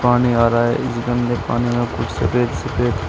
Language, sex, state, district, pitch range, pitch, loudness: Hindi, male, Uttar Pradesh, Shamli, 115-120 Hz, 120 Hz, -19 LUFS